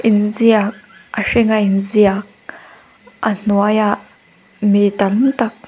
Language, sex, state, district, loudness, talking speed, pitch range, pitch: Mizo, female, Mizoram, Aizawl, -15 LUFS, 125 wpm, 200-220 Hz, 210 Hz